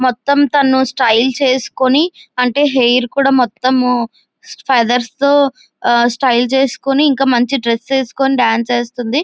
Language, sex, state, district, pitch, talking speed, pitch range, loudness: Telugu, female, Andhra Pradesh, Visakhapatnam, 255 Hz, 115 wpm, 245-275 Hz, -13 LUFS